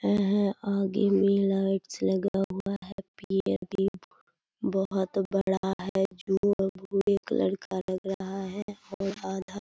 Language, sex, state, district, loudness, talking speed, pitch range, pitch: Hindi, female, Bihar, Purnia, -29 LUFS, 120 wpm, 190-200 Hz, 195 Hz